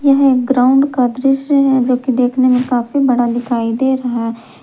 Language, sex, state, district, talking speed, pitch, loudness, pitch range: Hindi, female, Jharkhand, Garhwa, 205 wpm, 255 Hz, -14 LUFS, 245-270 Hz